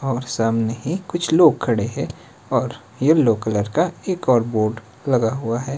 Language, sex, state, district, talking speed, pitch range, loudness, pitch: Hindi, male, Himachal Pradesh, Shimla, 175 wpm, 115-140 Hz, -20 LUFS, 125 Hz